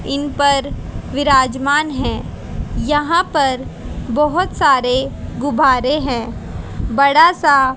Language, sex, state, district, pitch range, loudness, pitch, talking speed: Hindi, female, Haryana, Rohtak, 265-295 Hz, -16 LUFS, 280 Hz, 100 wpm